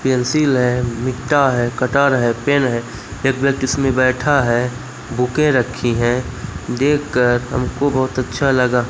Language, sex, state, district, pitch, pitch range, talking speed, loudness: Hindi, male, Madhya Pradesh, Umaria, 130 Hz, 120-135 Hz, 140 wpm, -17 LUFS